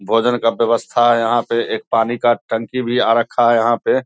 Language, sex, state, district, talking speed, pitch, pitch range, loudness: Hindi, male, Bihar, Saharsa, 235 wpm, 115 Hz, 115-120 Hz, -16 LUFS